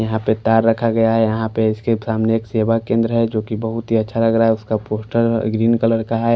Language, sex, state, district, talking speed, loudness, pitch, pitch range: Hindi, male, Maharashtra, Washim, 265 wpm, -18 LUFS, 115 Hz, 110-115 Hz